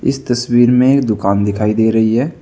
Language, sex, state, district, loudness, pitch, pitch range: Hindi, male, Uttar Pradesh, Saharanpur, -13 LUFS, 120 Hz, 110-125 Hz